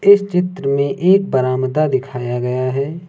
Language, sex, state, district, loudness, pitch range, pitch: Hindi, male, Uttar Pradesh, Lucknow, -17 LUFS, 130-180 Hz, 140 Hz